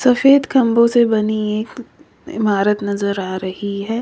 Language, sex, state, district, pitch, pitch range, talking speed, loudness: Hindi, female, Uttar Pradesh, Lalitpur, 215 Hz, 200-240 Hz, 150 wpm, -16 LUFS